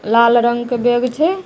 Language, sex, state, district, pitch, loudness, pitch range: Maithili, female, Bihar, Begusarai, 240 Hz, -15 LUFS, 235-250 Hz